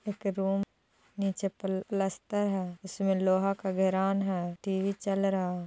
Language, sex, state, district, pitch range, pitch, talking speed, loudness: Hindi, female, Bihar, Jahanabad, 190-195 Hz, 195 Hz, 160 wpm, -31 LUFS